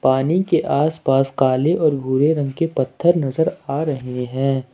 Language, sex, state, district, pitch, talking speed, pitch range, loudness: Hindi, male, Jharkhand, Ranchi, 140 Hz, 165 wpm, 130-160 Hz, -19 LUFS